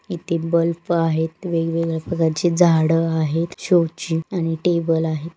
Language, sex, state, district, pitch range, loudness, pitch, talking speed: Marathi, female, Maharashtra, Pune, 160-170 Hz, -20 LUFS, 165 Hz, 125 wpm